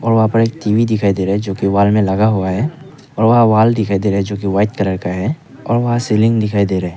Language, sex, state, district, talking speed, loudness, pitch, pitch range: Hindi, male, Arunachal Pradesh, Papum Pare, 300 wpm, -15 LUFS, 105 Hz, 100-115 Hz